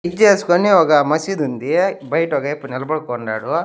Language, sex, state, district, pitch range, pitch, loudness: Telugu, male, Andhra Pradesh, Annamaya, 135-175 Hz, 155 Hz, -17 LUFS